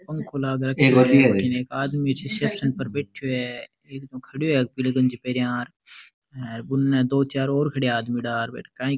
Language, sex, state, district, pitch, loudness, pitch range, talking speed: Rajasthani, male, Rajasthan, Nagaur, 130 Hz, -23 LUFS, 125-135 Hz, 155 wpm